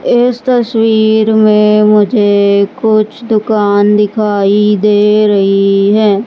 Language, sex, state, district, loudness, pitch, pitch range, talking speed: Hindi, male, Madhya Pradesh, Katni, -9 LUFS, 210 Hz, 205-220 Hz, 95 wpm